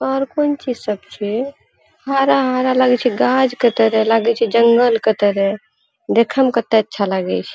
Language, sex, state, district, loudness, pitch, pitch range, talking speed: Angika, female, Bihar, Purnia, -16 LUFS, 235 Hz, 220-260 Hz, 175 wpm